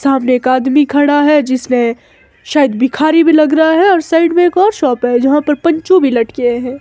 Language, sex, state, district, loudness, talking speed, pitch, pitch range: Hindi, female, Himachal Pradesh, Shimla, -11 LUFS, 220 wpm, 290 Hz, 255-320 Hz